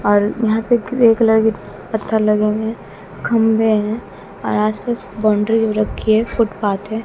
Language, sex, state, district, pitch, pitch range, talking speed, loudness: Hindi, female, Bihar, West Champaran, 220 Hz, 210-225 Hz, 180 wpm, -17 LUFS